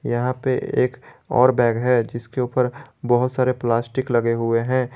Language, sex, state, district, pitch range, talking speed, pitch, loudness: Hindi, male, Jharkhand, Garhwa, 120-130 Hz, 180 wpm, 125 Hz, -21 LUFS